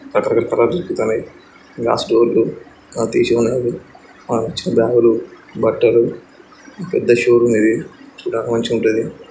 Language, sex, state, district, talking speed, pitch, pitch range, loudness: Telugu, male, Andhra Pradesh, Srikakulam, 105 wpm, 115 Hz, 115-120 Hz, -17 LUFS